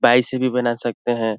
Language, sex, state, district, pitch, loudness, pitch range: Hindi, male, Bihar, Lakhisarai, 120 Hz, -20 LUFS, 120-125 Hz